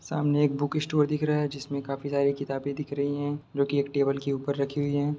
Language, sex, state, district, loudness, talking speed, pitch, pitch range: Hindi, male, Bihar, Sitamarhi, -28 LUFS, 265 wpm, 145 Hz, 140-145 Hz